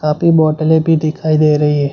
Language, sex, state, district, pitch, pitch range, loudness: Hindi, male, Gujarat, Gandhinagar, 155 Hz, 150-160 Hz, -13 LUFS